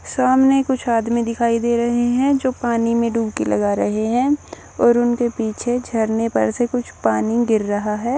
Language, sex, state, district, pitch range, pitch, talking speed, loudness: Hindi, male, Odisha, Nuapada, 220-245 Hz, 235 Hz, 185 wpm, -19 LUFS